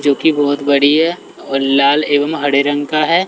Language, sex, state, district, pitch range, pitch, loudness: Hindi, male, Bihar, West Champaran, 140-155 Hz, 145 Hz, -14 LUFS